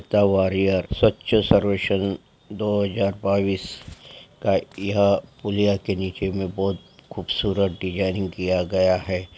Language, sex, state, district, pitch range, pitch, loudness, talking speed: Hindi, male, Andhra Pradesh, Chittoor, 95-100 Hz, 95 Hz, -22 LUFS, 110 wpm